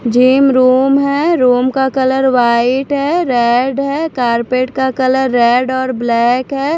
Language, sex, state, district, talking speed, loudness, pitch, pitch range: Hindi, female, Maharashtra, Washim, 150 wpm, -13 LUFS, 260 Hz, 245-275 Hz